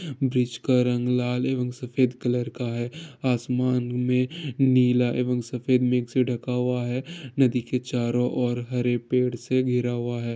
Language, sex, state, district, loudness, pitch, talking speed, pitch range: Hindi, male, Bihar, Gopalganj, -25 LUFS, 125 Hz, 170 wpm, 125-130 Hz